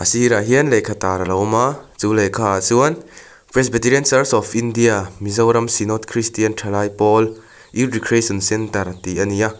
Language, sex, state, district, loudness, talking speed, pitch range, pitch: Mizo, male, Mizoram, Aizawl, -17 LUFS, 175 wpm, 100-115 Hz, 110 Hz